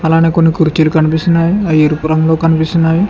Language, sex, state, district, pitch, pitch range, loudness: Telugu, male, Telangana, Hyderabad, 160 Hz, 160-165 Hz, -11 LUFS